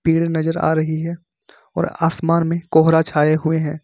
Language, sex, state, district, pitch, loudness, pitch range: Hindi, male, Jharkhand, Ranchi, 160 Hz, -18 LUFS, 160-165 Hz